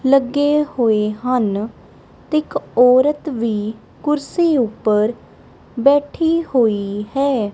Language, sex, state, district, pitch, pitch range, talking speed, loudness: Punjabi, female, Punjab, Kapurthala, 255 Hz, 220-290 Hz, 95 wpm, -17 LUFS